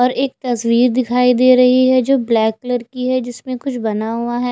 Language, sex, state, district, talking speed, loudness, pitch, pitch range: Hindi, female, Maharashtra, Gondia, 225 wpm, -16 LUFS, 250 Hz, 240-255 Hz